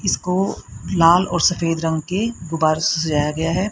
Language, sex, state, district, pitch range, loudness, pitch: Hindi, female, Haryana, Rohtak, 160-180 Hz, -19 LUFS, 165 Hz